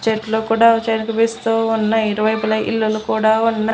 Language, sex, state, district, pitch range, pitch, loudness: Telugu, female, Andhra Pradesh, Annamaya, 220-225 Hz, 220 Hz, -17 LUFS